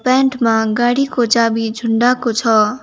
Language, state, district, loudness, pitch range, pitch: Nepali, West Bengal, Darjeeling, -15 LUFS, 225-255 Hz, 235 Hz